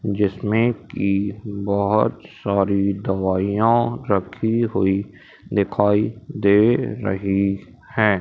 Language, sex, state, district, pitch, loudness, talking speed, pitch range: Hindi, male, Madhya Pradesh, Umaria, 100 Hz, -20 LUFS, 80 wpm, 100-110 Hz